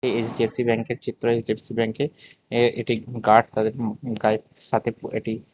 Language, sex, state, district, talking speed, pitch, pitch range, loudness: Bengali, male, Tripura, West Tripura, 130 wpm, 115 Hz, 110-120 Hz, -24 LUFS